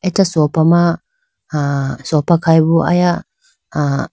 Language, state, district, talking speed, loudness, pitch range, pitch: Idu Mishmi, Arunachal Pradesh, Lower Dibang Valley, 130 wpm, -15 LUFS, 150-180 Hz, 165 Hz